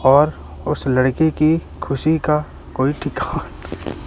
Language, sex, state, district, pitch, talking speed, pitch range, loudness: Hindi, male, Madhya Pradesh, Katni, 145 Hz, 120 wpm, 135-155 Hz, -19 LUFS